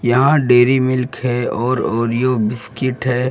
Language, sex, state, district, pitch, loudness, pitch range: Hindi, male, Bihar, Jamui, 125 Hz, -16 LUFS, 120-130 Hz